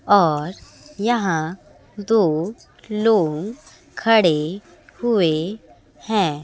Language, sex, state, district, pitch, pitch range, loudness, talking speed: Hindi, female, Chhattisgarh, Raipur, 200 Hz, 160-220 Hz, -20 LUFS, 65 wpm